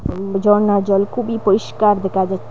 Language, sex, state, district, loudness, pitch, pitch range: Bengali, female, Assam, Hailakandi, -17 LUFS, 200 Hz, 195-210 Hz